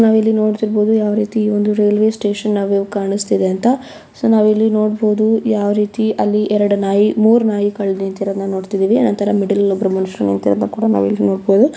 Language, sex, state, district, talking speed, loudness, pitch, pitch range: Kannada, female, Karnataka, Chamarajanagar, 160 wpm, -15 LUFS, 210 Hz, 195-215 Hz